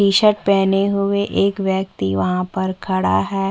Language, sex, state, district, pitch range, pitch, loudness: Hindi, female, Chhattisgarh, Bastar, 180-200 Hz, 195 Hz, -18 LUFS